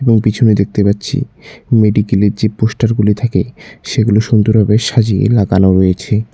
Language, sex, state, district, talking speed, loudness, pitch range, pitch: Bengali, male, West Bengal, Cooch Behar, 135 wpm, -12 LUFS, 100-115 Hz, 105 Hz